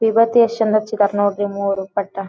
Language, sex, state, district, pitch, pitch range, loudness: Kannada, female, Karnataka, Dharwad, 205 Hz, 200-220 Hz, -17 LUFS